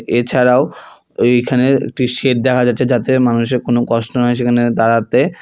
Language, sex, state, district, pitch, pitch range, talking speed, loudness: Bengali, male, West Bengal, Alipurduar, 120 Hz, 120-125 Hz, 155 wpm, -14 LUFS